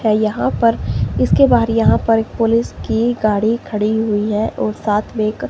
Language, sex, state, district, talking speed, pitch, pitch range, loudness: Hindi, female, Himachal Pradesh, Shimla, 185 wpm, 220 Hz, 215-230 Hz, -16 LUFS